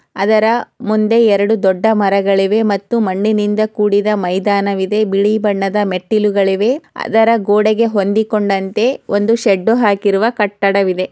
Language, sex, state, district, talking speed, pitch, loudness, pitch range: Kannada, female, Karnataka, Chamarajanagar, 115 wpm, 210 Hz, -14 LUFS, 200-220 Hz